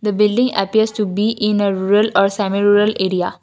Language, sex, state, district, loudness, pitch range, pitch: English, female, Assam, Kamrup Metropolitan, -16 LUFS, 200-215 Hz, 205 Hz